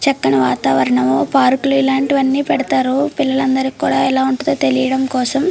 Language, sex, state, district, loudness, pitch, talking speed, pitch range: Telugu, female, Andhra Pradesh, Srikakulam, -15 LUFS, 265 Hz, 130 wpm, 255-275 Hz